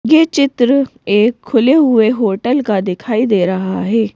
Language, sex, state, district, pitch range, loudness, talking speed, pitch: Hindi, female, Madhya Pradesh, Bhopal, 205-265 Hz, -13 LUFS, 160 wpm, 230 Hz